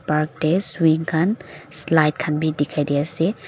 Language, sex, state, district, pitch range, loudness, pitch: Nagamese, female, Nagaland, Dimapur, 150-165 Hz, -20 LUFS, 155 Hz